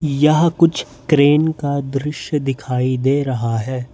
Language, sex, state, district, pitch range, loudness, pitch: Hindi, male, Jharkhand, Ranchi, 130-150 Hz, -17 LUFS, 140 Hz